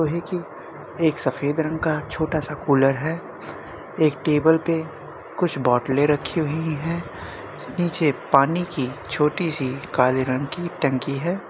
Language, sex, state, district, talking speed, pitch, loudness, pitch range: Hindi, male, Uttar Pradesh, Jyotiba Phule Nagar, 150 wpm, 155 Hz, -22 LUFS, 135-165 Hz